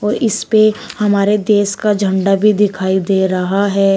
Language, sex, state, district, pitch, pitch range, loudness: Hindi, female, Uttar Pradesh, Shamli, 200 Hz, 195-210 Hz, -14 LUFS